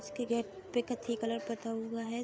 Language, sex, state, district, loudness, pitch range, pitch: Hindi, female, Uttar Pradesh, Jalaun, -37 LUFS, 225-235 Hz, 230 Hz